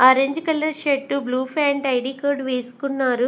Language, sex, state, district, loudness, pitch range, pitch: Telugu, female, Andhra Pradesh, Sri Satya Sai, -22 LUFS, 255-285 Hz, 275 Hz